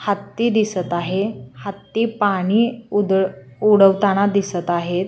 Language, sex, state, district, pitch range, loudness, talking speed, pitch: Marathi, female, Maharashtra, Solapur, 180-210 Hz, -19 LUFS, 105 wpm, 200 Hz